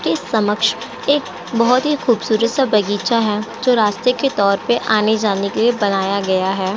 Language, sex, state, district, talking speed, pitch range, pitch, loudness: Hindi, female, Uttar Pradesh, Jyotiba Phule Nagar, 175 wpm, 200-240 Hz, 220 Hz, -17 LUFS